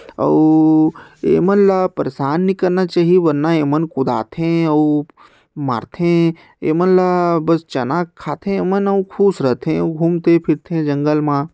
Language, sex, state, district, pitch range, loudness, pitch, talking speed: Chhattisgarhi, male, Chhattisgarh, Sarguja, 150-180 Hz, -16 LUFS, 165 Hz, 155 wpm